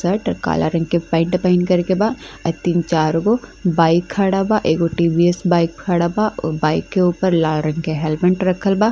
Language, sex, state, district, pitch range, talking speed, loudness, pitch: Bhojpuri, female, Uttar Pradesh, Ghazipur, 165-185 Hz, 195 wpm, -18 LUFS, 175 Hz